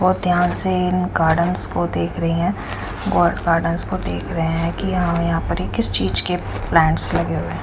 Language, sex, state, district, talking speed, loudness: Hindi, female, Punjab, Kapurthala, 210 wpm, -20 LUFS